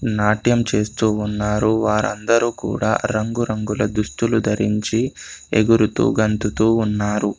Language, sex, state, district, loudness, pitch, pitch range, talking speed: Telugu, male, Telangana, Komaram Bheem, -19 LUFS, 110 Hz, 105-115 Hz, 90 wpm